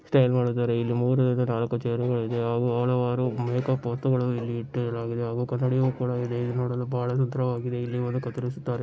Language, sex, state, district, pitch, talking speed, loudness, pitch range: Kannada, male, Karnataka, Chamarajanagar, 125 Hz, 165 wpm, -26 LUFS, 120-125 Hz